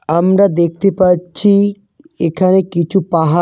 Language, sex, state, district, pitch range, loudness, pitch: Bengali, male, West Bengal, Cooch Behar, 170-200 Hz, -13 LUFS, 185 Hz